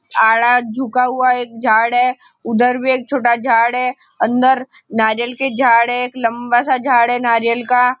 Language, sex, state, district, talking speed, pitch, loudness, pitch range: Hindi, male, Maharashtra, Nagpur, 175 wpm, 245 Hz, -15 LUFS, 235-255 Hz